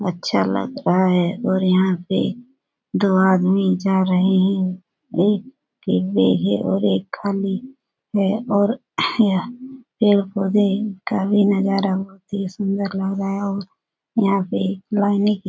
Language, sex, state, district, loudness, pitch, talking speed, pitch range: Hindi, female, Bihar, Supaul, -20 LUFS, 195 Hz, 130 wpm, 185-205 Hz